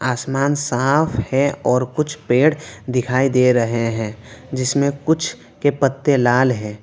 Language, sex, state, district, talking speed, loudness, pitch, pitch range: Hindi, male, West Bengal, Alipurduar, 140 wpm, -18 LUFS, 130 Hz, 120-140 Hz